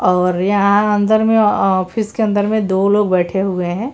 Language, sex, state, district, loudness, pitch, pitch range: Hindi, female, Bihar, Patna, -15 LUFS, 200 Hz, 185-215 Hz